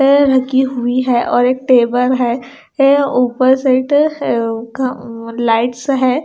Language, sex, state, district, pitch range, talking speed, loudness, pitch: Hindi, female, Punjab, Kapurthala, 240-265 Hz, 115 wpm, -14 LUFS, 255 Hz